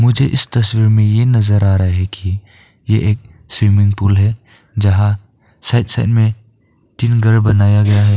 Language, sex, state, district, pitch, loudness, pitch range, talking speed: Hindi, male, Arunachal Pradesh, Papum Pare, 105 Hz, -14 LUFS, 100-115 Hz, 175 wpm